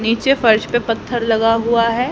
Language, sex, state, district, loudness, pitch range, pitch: Hindi, female, Haryana, Charkhi Dadri, -16 LUFS, 225-240 Hz, 230 Hz